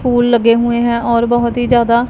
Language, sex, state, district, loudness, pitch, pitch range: Hindi, female, Punjab, Pathankot, -13 LUFS, 235 Hz, 235-240 Hz